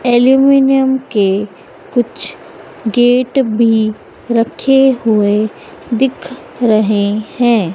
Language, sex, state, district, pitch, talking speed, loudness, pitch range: Hindi, female, Madhya Pradesh, Dhar, 235 Hz, 75 wpm, -13 LUFS, 215-260 Hz